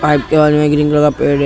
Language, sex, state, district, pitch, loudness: Hindi, male, Maharashtra, Mumbai Suburban, 150 Hz, -12 LUFS